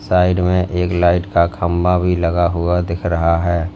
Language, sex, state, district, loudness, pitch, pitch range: Hindi, male, Uttar Pradesh, Lalitpur, -16 LUFS, 90 Hz, 85-90 Hz